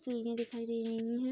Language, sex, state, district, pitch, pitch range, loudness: Hindi, female, Bihar, Araria, 235 Hz, 230-240 Hz, -37 LUFS